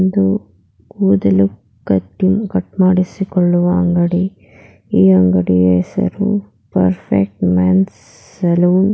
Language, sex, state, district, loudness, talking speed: Kannada, female, Karnataka, Mysore, -15 LUFS, 85 wpm